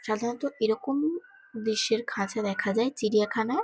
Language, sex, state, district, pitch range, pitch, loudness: Bengali, female, West Bengal, Kolkata, 215-275 Hz, 225 Hz, -28 LUFS